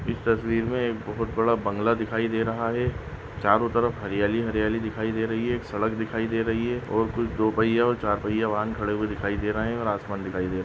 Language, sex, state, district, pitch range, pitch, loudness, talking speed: Hindi, male, Goa, North and South Goa, 105-115 Hz, 110 Hz, -26 LUFS, 240 wpm